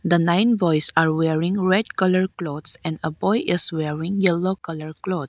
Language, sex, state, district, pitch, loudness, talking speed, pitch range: English, female, Arunachal Pradesh, Lower Dibang Valley, 170 Hz, -20 LUFS, 180 wpm, 160-185 Hz